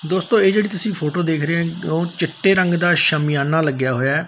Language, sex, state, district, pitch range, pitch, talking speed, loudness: Punjabi, male, Punjab, Fazilka, 155-185 Hz, 165 Hz, 225 wpm, -17 LUFS